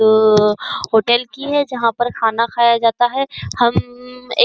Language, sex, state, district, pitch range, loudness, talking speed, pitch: Hindi, female, Uttar Pradesh, Jyotiba Phule Nagar, 225-250 Hz, -16 LUFS, 175 wpm, 240 Hz